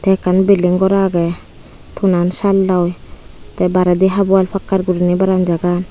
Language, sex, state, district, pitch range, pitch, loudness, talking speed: Chakma, female, Tripura, Unakoti, 175-190 Hz, 185 Hz, -14 LUFS, 140 wpm